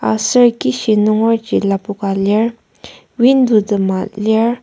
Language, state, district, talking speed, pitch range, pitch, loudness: Ao, Nagaland, Kohima, 105 wpm, 200-230 Hz, 215 Hz, -14 LUFS